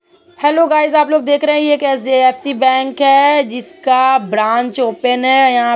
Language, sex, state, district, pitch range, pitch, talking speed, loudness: Hindi, female, Uttar Pradesh, Budaun, 255-295 Hz, 270 Hz, 185 wpm, -13 LUFS